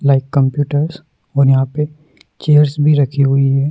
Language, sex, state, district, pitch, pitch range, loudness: Hindi, male, Madhya Pradesh, Dhar, 145 Hz, 135-150 Hz, -14 LUFS